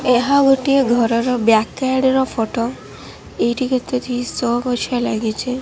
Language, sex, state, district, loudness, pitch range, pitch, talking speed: Odia, female, Odisha, Khordha, -17 LUFS, 235-260 Hz, 250 Hz, 130 wpm